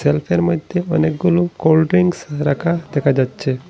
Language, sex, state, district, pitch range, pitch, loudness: Bengali, male, Assam, Hailakandi, 135-175 Hz, 160 Hz, -17 LUFS